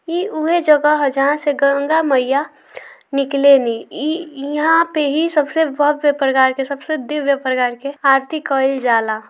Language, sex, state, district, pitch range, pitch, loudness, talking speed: Hindi, female, Bihar, Gopalganj, 270-305 Hz, 285 Hz, -16 LUFS, 160 wpm